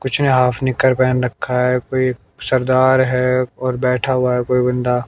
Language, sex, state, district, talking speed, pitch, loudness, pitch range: Hindi, male, Haryana, Jhajjar, 190 wpm, 125 Hz, -16 LUFS, 125-130 Hz